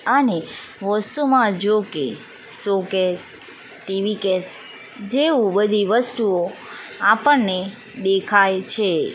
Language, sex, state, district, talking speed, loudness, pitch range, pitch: Gujarati, female, Gujarat, Valsad, 80 wpm, -20 LUFS, 195-240 Hz, 210 Hz